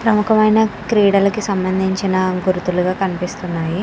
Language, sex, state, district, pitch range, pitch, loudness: Telugu, female, Andhra Pradesh, Krishna, 185-210 Hz, 195 Hz, -17 LUFS